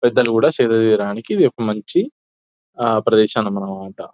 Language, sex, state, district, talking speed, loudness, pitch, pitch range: Telugu, male, Telangana, Nalgonda, 145 wpm, -17 LUFS, 105 Hz, 95-110 Hz